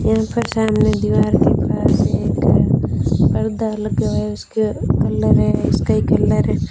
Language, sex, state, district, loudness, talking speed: Hindi, female, Rajasthan, Bikaner, -17 LUFS, 135 wpm